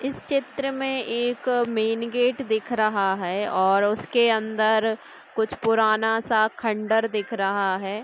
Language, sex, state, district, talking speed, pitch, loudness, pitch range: Hindi, female, Chhattisgarh, Sukma, 150 wpm, 225 Hz, -23 LUFS, 215-245 Hz